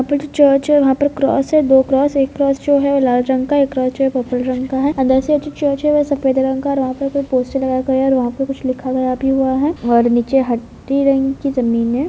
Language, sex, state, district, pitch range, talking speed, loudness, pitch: Hindi, female, Bihar, Purnia, 255-280 Hz, 300 wpm, -16 LUFS, 270 Hz